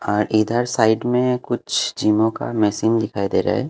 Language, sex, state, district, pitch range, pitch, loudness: Hindi, male, Haryana, Jhajjar, 105-120 Hz, 110 Hz, -19 LUFS